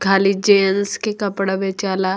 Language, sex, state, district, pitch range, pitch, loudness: Bhojpuri, female, Bihar, Muzaffarpur, 190-200 Hz, 195 Hz, -18 LUFS